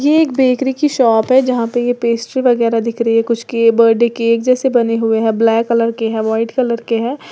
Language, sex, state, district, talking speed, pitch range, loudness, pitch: Hindi, female, Uttar Pradesh, Lalitpur, 240 wpm, 230-255 Hz, -14 LUFS, 235 Hz